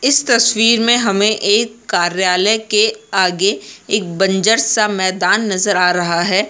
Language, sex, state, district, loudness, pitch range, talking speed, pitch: Hindi, female, Jharkhand, Jamtara, -14 LUFS, 185-220 Hz, 150 wpm, 205 Hz